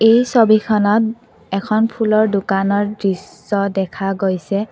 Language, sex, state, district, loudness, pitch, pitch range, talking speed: Assamese, female, Assam, Kamrup Metropolitan, -17 LUFS, 205 Hz, 195-220 Hz, 100 wpm